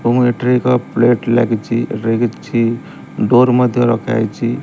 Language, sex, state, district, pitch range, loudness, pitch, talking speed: Odia, male, Odisha, Malkangiri, 115-125 Hz, -15 LUFS, 120 Hz, 130 wpm